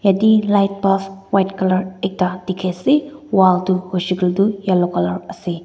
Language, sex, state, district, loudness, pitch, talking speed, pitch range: Nagamese, female, Nagaland, Dimapur, -18 LUFS, 190 Hz, 170 wpm, 185-200 Hz